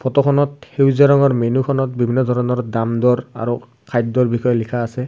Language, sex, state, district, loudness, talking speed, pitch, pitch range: Assamese, male, Assam, Kamrup Metropolitan, -17 LUFS, 140 wpm, 125 Hz, 120-135 Hz